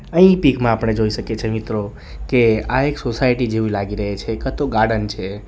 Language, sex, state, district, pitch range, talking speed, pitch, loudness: Gujarati, male, Gujarat, Valsad, 110-125 Hz, 220 wpm, 110 Hz, -18 LUFS